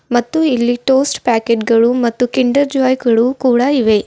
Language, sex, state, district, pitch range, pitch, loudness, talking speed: Kannada, female, Karnataka, Bidar, 235-265 Hz, 245 Hz, -14 LUFS, 160 wpm